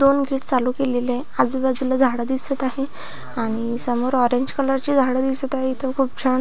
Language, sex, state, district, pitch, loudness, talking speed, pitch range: Marathi, female, Maharashtra, Pune, 260 Hz, -21 LUFS, 195 wpm, 250-270 Hz